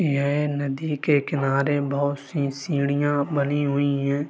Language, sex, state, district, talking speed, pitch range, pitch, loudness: Hindi, male, Uttar Pradesh, Varanasi, 140 wpm, 140-145 Hz, 140 Hz, -23 LUFS